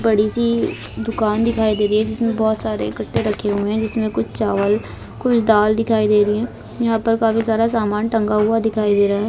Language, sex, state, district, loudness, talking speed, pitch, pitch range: Hindi, female, Bihar, East Champaran, -18 LUFS, 220 wpm, 220 Hz, 210-225 Hz